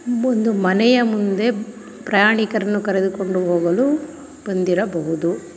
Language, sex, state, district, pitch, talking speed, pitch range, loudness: Kannada, female, Karnataka, Chamarajanagar, 210 Hz, 85 wpm, 185-240 Hz, -18 LUFS